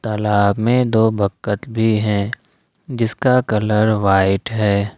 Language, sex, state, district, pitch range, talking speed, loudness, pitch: Hindi, male, Jharkhand, Ranchi, 100-115 Hz, 120 wpm, -17 LUFS, 105 Hz